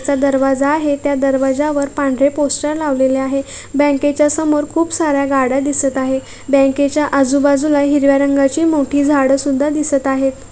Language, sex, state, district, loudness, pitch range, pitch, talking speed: Marathi, female, Maharashtra, Solapur, -15 LUFS, 275-295 Hz, 280 Hz, 145 wpm